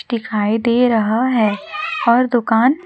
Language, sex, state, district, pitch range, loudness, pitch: Hindi, female, Chhattisgarh, Raipur, 225-255 Hz, -16 LUFS, 235 Hz